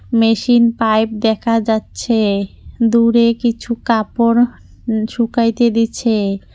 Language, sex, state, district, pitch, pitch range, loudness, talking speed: Bengali, female, West Bengal, Cooch Behar, 230 Hz, 220-235 Hz, -15 LUFS, 90 wpm